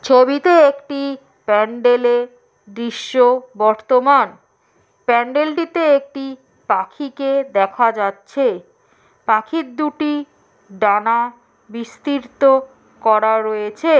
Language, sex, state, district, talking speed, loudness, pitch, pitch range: Bengali, female, West Bengal, Jhargram, 75 wpm, -17 LUFS, 255 Hz, 225-280 Hz